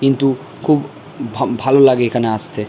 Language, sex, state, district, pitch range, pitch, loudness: Bengali, male, West Bengal, Malda, 120-135 Hz, 130 Hz, -15 LUFS